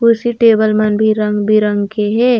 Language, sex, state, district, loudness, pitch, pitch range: Chhattisgarhi, female, Chhattisgarh, Raigarh, -13 LUFS, 215 Hz, 210-230 Hz